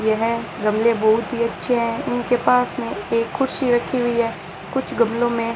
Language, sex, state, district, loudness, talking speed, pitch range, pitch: Hindi, male, Rajasthan, Bikaner, -20 LUFS, 195 wpm, 230-245 Hz, 235 Hz